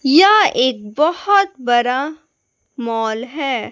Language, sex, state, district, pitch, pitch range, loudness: Hindi, female, Bihar, West Champaran, 270 Hz, 240-320 Hz, -16 LUFS